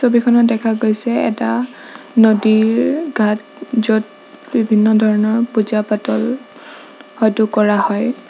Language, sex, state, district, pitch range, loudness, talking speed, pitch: Assamese, female, Assam, Sonitpur, 215-240 Hz, -15 LUFS, 100 wpm, 225 Hz